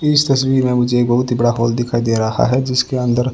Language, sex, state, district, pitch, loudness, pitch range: Hindi, male, Rajasthan, Bikaner, 125 Hz, -16 LUFS, 120-130 Hz